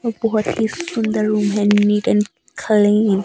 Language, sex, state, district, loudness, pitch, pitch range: Hindi, female, Himachal Pradesh, Shimla, -17 LUFS, 215 Hz, 205-220 Hz